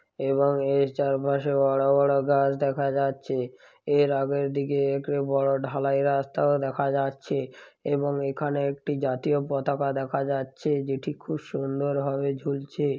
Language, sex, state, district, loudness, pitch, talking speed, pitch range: Bengali, male, West Bengal, Paschim Medinipur, -26 LUFS, 140 Hz, 135 wpm, 135-140 Hz